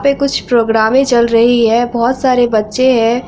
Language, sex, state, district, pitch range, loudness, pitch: Hindi, female, Bihar, Araria, 230-255 Hz, -12 LUFS, 240 Hz